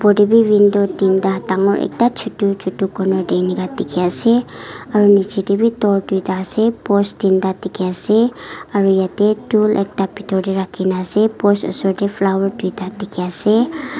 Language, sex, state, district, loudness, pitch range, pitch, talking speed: Nagamese, female, Nagaland, Kohima, -16 LUFS, 190-210 Hz, 200 Hz, 175 wpm